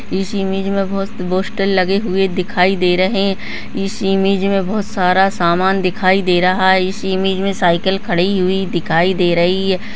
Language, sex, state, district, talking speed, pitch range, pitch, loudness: Hindi, female, Uttarakhand, Tehri Garhwal, 185 wpm, 185-195 Hz, 190 Hz, -16 LUFS